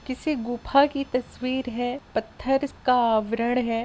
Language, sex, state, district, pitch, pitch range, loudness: Hindi, female, Chhattisgarh, Bilaspur, 250 Hz, 240-270 Hz, -25 LUFS